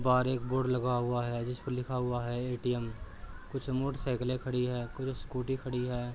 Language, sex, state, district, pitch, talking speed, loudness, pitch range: Hindi, male, Uttar Pradesh, Gorakhpur, 125 Hz, 205 wpm, -34 LUFS, 120-130 Hz